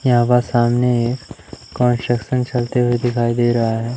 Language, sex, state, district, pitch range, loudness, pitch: Hindi, male, Madhya Pradesh, Umaria, 120-125 Hz, -17 LUFS, 120 Hz